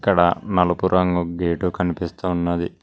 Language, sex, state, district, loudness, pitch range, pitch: Telugu, male, Telangana, Mahabubabad, -21 LUFS, 85-90 Hz, 90 Hz